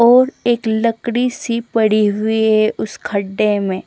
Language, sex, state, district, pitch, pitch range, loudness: Hindi, female, Chandigarh, Chandigarh, 220 Hz, 215-235 Hz, -16 LUFS